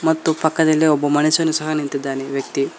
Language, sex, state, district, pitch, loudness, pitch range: Kannada, male, Karnataka, Koppal, 155 Hz, -18 LUFS, 140-160 Hz